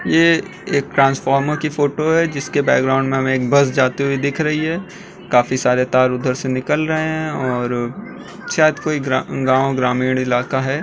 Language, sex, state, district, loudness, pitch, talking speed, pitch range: Hindi, male, Uttar Pradesh, Jyotiba Phule Nagar, -17 LUFS, 140 Hz, 175 wpm, 130-155 Hz